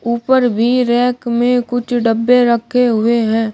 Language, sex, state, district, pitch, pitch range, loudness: Hindi, male, Uttar Pradesh, Shamli, 240 Hz, 235-245 Hz, -14 LUFS